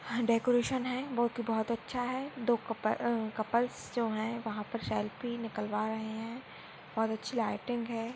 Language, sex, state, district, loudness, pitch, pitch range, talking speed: Hindi, female, Goa, North and South Goa, -34 LUFS, 230 Hz, 220-240 Hz, 170 wpm